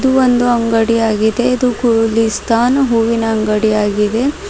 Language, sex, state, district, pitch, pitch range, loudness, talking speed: Kannada, female, Karnataka, Bidar, 230 Hz, 220-250 Hz, -14 LUFS, 120 wpm